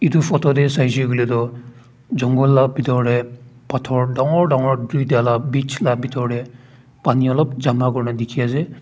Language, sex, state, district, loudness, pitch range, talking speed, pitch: Nagamese, male, Nagaland, Dimapur, -18 LUFS, 125-135 Hz, 165 wpm, 130 Hz